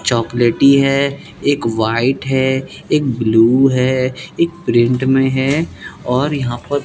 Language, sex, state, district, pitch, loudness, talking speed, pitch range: Hindi, male, Bihar, West Champaran, 130 Hz, -15 LUFS, 140 wpm, 120-140 Hz